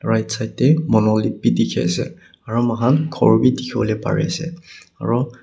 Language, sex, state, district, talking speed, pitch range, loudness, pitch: Nagamese, male, Nagaland, Kohima, 165 wpm, 110-150 Hz, -18 LUFS, 120 Hz